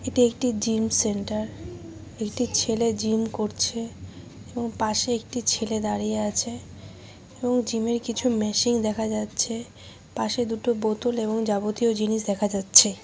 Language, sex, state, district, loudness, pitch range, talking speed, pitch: Bengali, female, West Bengal, Jhargram, -24 LUFS, 210-235 Hz, 145 wpm, 220 Hz